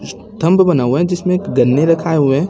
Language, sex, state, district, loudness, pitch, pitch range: Hindi, male, Chhattisgarh, Raipur, -14 LUFS, 165 Hz, 140-180 Hz